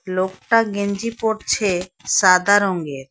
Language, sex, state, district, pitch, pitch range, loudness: Bengali, female, West Bengal, Alipurduar, 200 Hz, 185-215 Hz, -19 LUFS